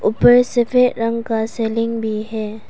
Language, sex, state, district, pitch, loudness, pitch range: Hindi, female, Arunachal Pradesh, Papum Pare, 230 Hz, -17 LUFS, 220-240 Hz